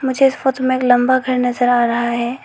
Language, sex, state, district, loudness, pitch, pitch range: Hindi, female, Arunachal Pradesh, Lower Dibang Valley, -16 LUFS, 255 Hz, 245-260 Hz